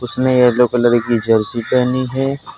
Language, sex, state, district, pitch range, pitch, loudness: Hindi, male, Uttar Pradesh, Saharanpur, 120-130 Hz, 125 Hz, -15 LUFS